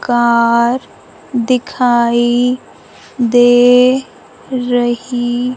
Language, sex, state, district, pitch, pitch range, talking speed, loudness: Hindi, male, Punjab, Fazilka, 245 Hz, 240-250 Hz, 45 wpm, -13 LUFS